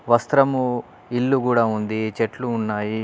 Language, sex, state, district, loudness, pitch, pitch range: Telugu, male, Telangana, Adilabad, -21 LUFS, 115 Hz, 110-125 Hz